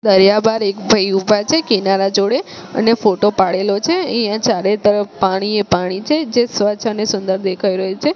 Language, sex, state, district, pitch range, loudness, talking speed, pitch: Gujarati, female, Gujarat, Gandhinagar, 195-220 Hz, -15 LUFS, 175 wpm, 205 Hz